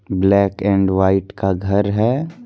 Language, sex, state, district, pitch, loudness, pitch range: Hindi, male, Bihar, Purnia, 100 Hz, -17 LUFS, 95-100 Hz